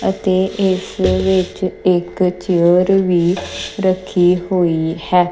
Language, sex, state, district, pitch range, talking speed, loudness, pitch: Punjabi, female, Punjab, Kapurthala, 175-185 Hz, 115 wpm, -16 LUFS, 180 Hz